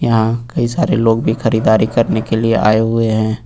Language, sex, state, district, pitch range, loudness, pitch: Hindi, male, Uttar Pradesh, Lucknow, 110-115 Hz, -14 LUFS, 115 Hz